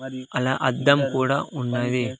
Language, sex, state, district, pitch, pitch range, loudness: Telugu, male, Andhra Pradesh, Sri Satya Sai, 130 Hz, 125-135 Hz, -23 LUFS